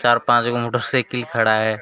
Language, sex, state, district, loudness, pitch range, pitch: Sadri, male, Chhattisgarh, Jashpur, -19 LUFS, 115-120 Hz, 120 Hz